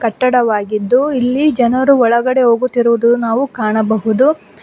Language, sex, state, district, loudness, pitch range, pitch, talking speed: Kannada, female, Karnataka, Bangalore, -13 LUFS, 230-255 Hz, 240 Hz, 90 wpm